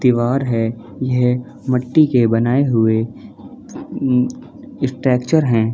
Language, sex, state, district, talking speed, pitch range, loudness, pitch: Hindi, male, Chhattisgarh, Balrampur, 115 wpm, 115-130 Hz, -17 LUFS, 125 Hz